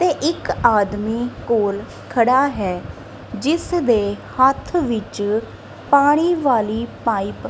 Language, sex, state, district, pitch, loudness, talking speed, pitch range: Punjabi, female, Punjab, Kapurthala, 240 Hz, -19 LUFS, 110 wpm, 215-285 Hz